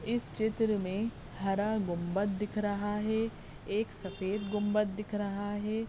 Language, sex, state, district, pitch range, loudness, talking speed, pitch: Hindi, female, Goa, North and South Goa, 200-215 Hz, -33 LUFS, 145 wpm, 210 Hz